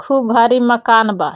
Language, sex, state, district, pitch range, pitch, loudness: Bhojpuri, female, Bihar, Muzaffarpur, 225-250 Hz, 235 Hz, -13 LUFS